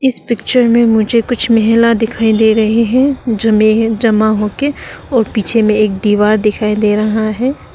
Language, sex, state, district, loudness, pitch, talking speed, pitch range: Hindi, female, Arunachal Pradesh, Papum Pare, -12 LUFS, 225 Hz, 180 wpm, 215-235 Hz